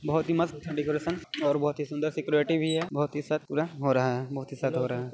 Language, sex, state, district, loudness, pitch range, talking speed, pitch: Hindi, male, Chhattisgarh, Balrampur, -29 LUFS, 140-160 Hz, 280 wpm, 150 Hz